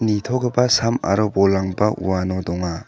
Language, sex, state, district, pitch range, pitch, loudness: Garo, male, Meghalaya, South Garo Hills, 95-115 Hz, 100 Hz, -19 LUFS